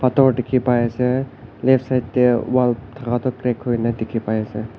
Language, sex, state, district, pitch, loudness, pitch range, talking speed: Nagamese, male, Nagaland, Kohima, 125 Hz, -19 LUFS, 115-130 Hz, 190 wpm